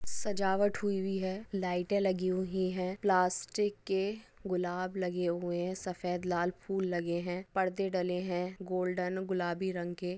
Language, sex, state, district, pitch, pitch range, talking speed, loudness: Hindi, female, Maharashtra, Dhule, 185 Hz, 180-190 Hz, 145 wpm, -34 LUFS